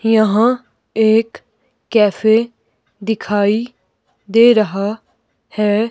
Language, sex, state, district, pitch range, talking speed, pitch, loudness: Hindi, female, Himachal Pradesh, Shimla, 210-230 Hz, 70 wpm, 220 Hz, -15 LUFS